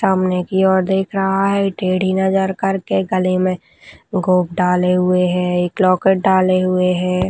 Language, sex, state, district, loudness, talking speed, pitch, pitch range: Hindi, female, Rajasthan, Nagaur, -16 LUFS, 165 wpm, 185 Hz, 180-190 Hz